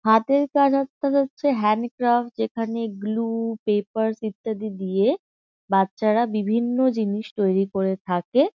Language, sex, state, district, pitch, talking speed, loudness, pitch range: Bengali, female, West Bengal, Kolkata, 225 Hz, 120 wpm, -23 LUFS, 210-245 Hz